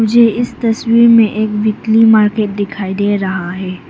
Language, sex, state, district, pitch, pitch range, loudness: Hindi, female, Arunachal Pradesh, Papum Pare, 215 Hz, 200-225 Hz, -12 LUFS